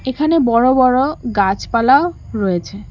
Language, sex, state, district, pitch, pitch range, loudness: Bengali, female, West Bengal, Cooch Behar, 250 Hz, 205-275 Hz, -15 LUFS